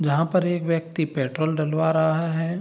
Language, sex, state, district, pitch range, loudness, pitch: Hindi, male, Bihar, Saharsa, 155-165 Hz, -23 LUFS, 160 Hz